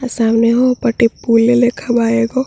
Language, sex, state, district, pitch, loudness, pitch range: Bhojpuri, female, Uttar Pradesh, Ghazipur, 235 Hz, -13 LUFS, 230-250 Hz